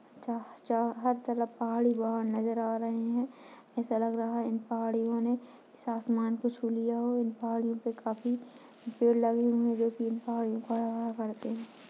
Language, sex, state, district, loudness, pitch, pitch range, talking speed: Hindi, female, Uttarakhand, Uttarkashi, -32 LUFS, 230 Hz, 230-240 Hz, 175 wpm